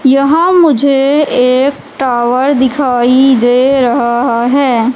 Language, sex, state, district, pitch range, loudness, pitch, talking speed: Hindi, female, Madhya Pradesh, Katni, 245-280 Hz, -10 LUFS, 260 Hz, 95 wpm